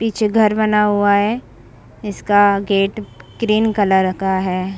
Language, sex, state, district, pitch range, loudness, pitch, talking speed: Hindi, female, Bihar, Saran, 195-215 Hz, -16 LUFS, 205 Hz, 140 wpm